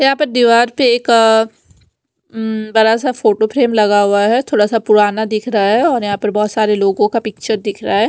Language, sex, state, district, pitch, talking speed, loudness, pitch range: Hindi, female, Punjab, Fazilka, 220 Hz, 220 wpm, -13 LUFS, 210-235 Hz